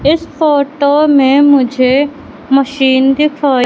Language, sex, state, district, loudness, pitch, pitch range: Hindi, female, Madhya Pradesh, Katni, -11 LUFS, 280 Hz, 270-295 Hz